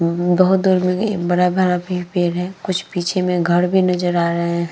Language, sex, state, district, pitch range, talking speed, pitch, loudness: Hindi, female, Uttar Pradesh, Etah, 175-185 Hz, 240 wpm, 180 Hz, -18 LUFS